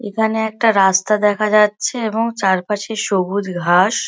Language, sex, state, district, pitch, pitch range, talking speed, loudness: Bengali, female, West Bengal, Kolkata, 210 Hz, 190-220 Hz, 135 wpm, -16 LUFS